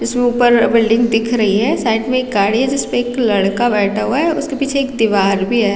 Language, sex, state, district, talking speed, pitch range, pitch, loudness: Hindi, female, Chhattisgarh, Raigarh, 240 wpm, 210-245 Hz, 230 Hz, -15 LUFS